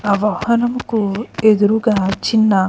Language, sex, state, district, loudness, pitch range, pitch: Telugu, female, Andhra Pradesh, Krishna, -16 LUFS, 200-225 Hz, 215 Hz